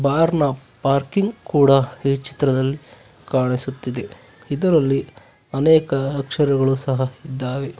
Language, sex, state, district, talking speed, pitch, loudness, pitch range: Kannada, male, Karnataka, Bangalore, 90 wpm, 135 Hz, -20 LUFS, 130-145 Hz